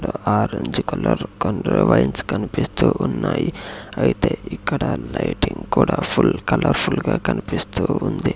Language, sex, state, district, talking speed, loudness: Telugu, male, Andhra Pradesh, Sri Satya Sai, 100 wpm, -20 LUFS